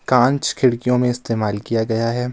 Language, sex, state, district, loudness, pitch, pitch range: Hindi, male, Himachal Pradesh, Shimla, -19 LUFS, 120 Hz, 115-125 Hz